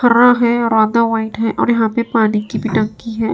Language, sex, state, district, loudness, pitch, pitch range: Hindi, female, Bihar, Katihar, -15 LUFS, 225 Hz, 220-235 Hz